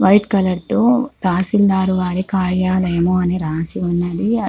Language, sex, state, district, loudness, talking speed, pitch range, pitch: Telugu, female, Andhra Pradesh, Chittoor, -17 LUFS, 120 wpm, 180-200 Hz, 185 Hz